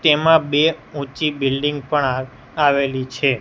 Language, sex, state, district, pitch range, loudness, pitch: Gujarati, male, Gujarat, Gandhinagar, 130-150 Hz, -18 LUFS, 140 Hz